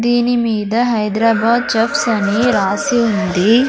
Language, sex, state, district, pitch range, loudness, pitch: Telugu, female, Andhra Pradesh, Sri Satya Sai, 210-240 Hz, -15 LUFS, 230 Hz